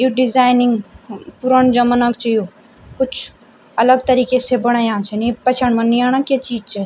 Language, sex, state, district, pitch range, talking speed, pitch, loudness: Garhwali, female, Uttarakhand, Tehri Garhwal, 230-255 Hz, 185 wpm, 245 Hz, -15 LUFS